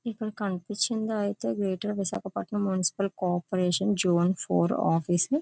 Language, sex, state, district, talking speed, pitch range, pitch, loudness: Telugu, female, Andhra Pradesh, Visakhapatnam, 120 wpm, 175-210 Hz, 195 Hz, -28 LUFS